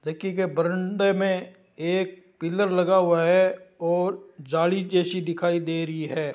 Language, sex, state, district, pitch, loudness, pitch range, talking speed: Marwari, male, Rajasthan, Nagaur, 180 Hz, -24 LUFS, 170-185 Hz, 150 wpm